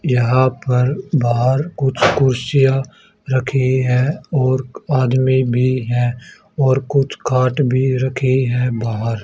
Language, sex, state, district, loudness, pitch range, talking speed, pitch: Hindi, male, Haryana, Charkhi Dadri, -17 LUFS, 125-135 Hz, 115 wpm, 130 Hz